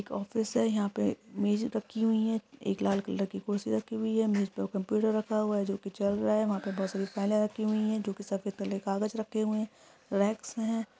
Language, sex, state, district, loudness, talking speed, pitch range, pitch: Hindi, female, Bihar, Supaul, -31 LUFS, 255 wpm, 195-220 Hz, 210 Hz